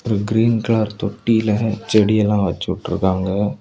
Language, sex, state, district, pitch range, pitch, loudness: Tamil, male, Tamil Nadu, Kanyakumari, 100-110 Hz, 105 Hz, -18 LUFS